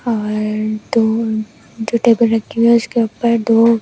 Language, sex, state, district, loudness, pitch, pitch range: Hindi, female, Delhi, New Delhi, -15 LUFS, 230 Hz, 220-235 Hz